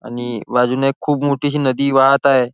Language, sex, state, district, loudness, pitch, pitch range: Marathi, male, Maharashtra, Nagpur, -16 LUFS, 135 Hz, 125-140 Hz